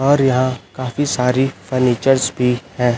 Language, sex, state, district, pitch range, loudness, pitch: Hindi, male, Chhattisgarh, Raipur, 125-135 Hz, -17 LUFS, 130 Hz